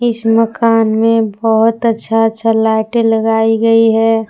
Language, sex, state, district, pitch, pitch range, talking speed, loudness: Hindi, female, Jharkhand, Palamu, 225 Hz, 225-230 Hz, 140 wpm, -12 LUFS